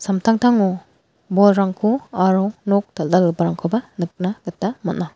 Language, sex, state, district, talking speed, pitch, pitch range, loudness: Garo, female, Meghalaya, West Garo Hills, 80 wpm, 190 Hz, 180-210 Hz, -19 LUFS